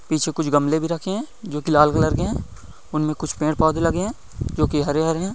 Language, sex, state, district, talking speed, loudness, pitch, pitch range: Hindi, male, Maharashtra, Chandrapur, 225 wpm, -21 LUFS, 155 Hz, 150-165 Hz